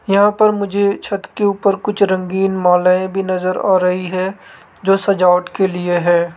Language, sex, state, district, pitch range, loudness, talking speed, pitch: Hindi, male, Rajasthan, Jaipur, 180-200 Hz, -16 LUFS, 180 wpm, 190 Hz